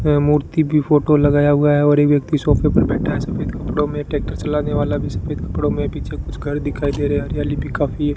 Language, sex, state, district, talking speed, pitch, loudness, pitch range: Hindi, male, Rajasthan, Bikaner, 250 wpm, 145 Hz, -18 LUFS, 145-150 Hz